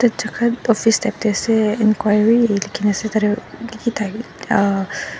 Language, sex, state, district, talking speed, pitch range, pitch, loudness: Nagamese, female, Nagaland, Dimapur, 115 wpm, 210-230 Hz, 220 Hz, -18 LUFS